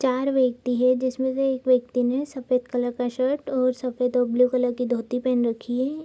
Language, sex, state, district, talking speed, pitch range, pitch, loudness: Hindi, female, Bihar, East Champaran, 220 wpm, 245-260 Hz, 255 Hz, -24 LUFS